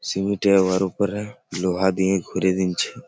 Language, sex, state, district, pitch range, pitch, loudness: Bengali, male, West Bengal, Malda, 95-100 Hz, 95 Hz, -22 LUFS